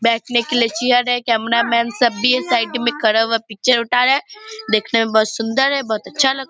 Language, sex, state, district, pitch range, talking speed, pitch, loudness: Hindi, female, Bihar, Purnia, 225-250 Hz, 250 wpm, 235 Hz, -17 LUFS